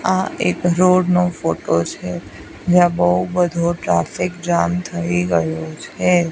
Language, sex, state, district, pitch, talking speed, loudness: Gujarati, female, Gujarat, Gandhinagar, 170 Hz, 135 wpm, -18 LUFS